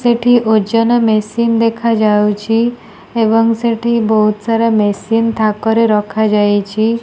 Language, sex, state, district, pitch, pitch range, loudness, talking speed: Odia, female, Odisha, Nuapada, 225 Hz, 215-230 Hz, -13 LUFS, 120 wpm